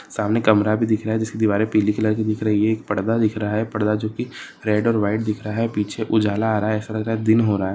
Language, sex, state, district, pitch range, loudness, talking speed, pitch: Marwari, male, Rajasthan, Nagaur, 105-110 Hz, -21 LUFS, 315 wpm, 110 Hz